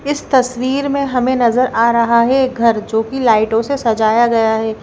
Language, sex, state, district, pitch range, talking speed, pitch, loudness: Hindi, female, Himachal Pradesh, Shimla, 225-260 Hz, 210 wpm, 235 Hz, -14 LUFS